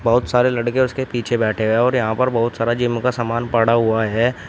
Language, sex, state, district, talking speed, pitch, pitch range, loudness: Hindi, male, Uttar Pradesh, Shamli, 240 wpm, 120 Hz, 115-125 Hz, -18 LUFS